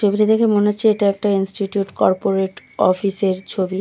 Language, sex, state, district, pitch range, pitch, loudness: Bengali, female, West Bengal, Kolkata, 195-210 Hz, 200 Hz, -18 LUFS